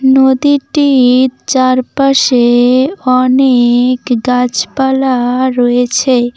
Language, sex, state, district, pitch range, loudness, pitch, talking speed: Bengali, female, West Bengal, Cooch Behar, 245-265 Hz, -10 LUFS, 255 Hz, 45 wpm